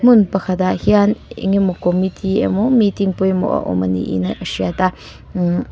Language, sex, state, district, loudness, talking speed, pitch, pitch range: Mizo, female, Mizoram, Aizawl, -17 LUFS, 190 wpm, 190 Hz, 175-200 Hz